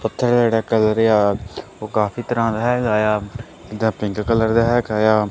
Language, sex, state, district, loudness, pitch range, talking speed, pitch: Punjabi, male, Punjab, Kapurthala, -18 LUFS, 105-115 Hz, 180 wpm, 110 Hz